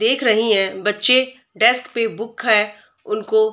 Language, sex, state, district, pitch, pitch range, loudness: Hindi, female, Bihar, Darbhanga, 220 Hz, 210-250 Hz, -17 LUFS